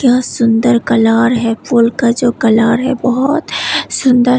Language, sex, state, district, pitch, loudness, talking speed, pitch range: Hindi, female, Tripura, West Tripura, 240 Hz, -12 LUFS, 165 wpm, 230-250 Hz